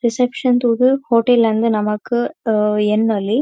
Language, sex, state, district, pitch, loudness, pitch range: Tulu, female, Karnataka, Dakshina Kannada, 230 Hz, -16 LUFS, 215-245 Hz